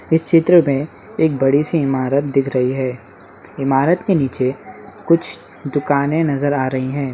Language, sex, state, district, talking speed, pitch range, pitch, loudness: Hindi, male, Bihar, Muzaffarpur, 160 wpm, 130-160 Hz, 140 Hz, -17 LUFS